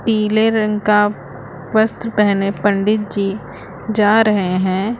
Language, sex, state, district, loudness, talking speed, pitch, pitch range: Hindi, female, Uttar Pradesh, Lucknow, -16 LUFS, 120 wpm, 210 Hz, 195-220 Hz